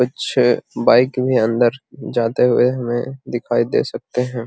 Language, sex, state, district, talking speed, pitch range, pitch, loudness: Magahi, male, Bihar, Gaya, 160 wpm, 120-125 Hz, 125 Hz, -18 LUFS